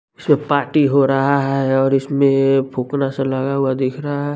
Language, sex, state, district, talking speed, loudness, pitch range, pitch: Hindi, male, Bihar, West Champaran, 195 wpm, -17 LUFS, 135-140 Hz, 135 Hz